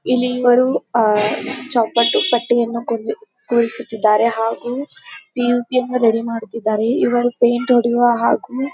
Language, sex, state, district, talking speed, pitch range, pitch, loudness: Kannada, female, Karnataka, Dharwad, 105 wpm, 230-250 Hz, 240 Hz, -17 LUFS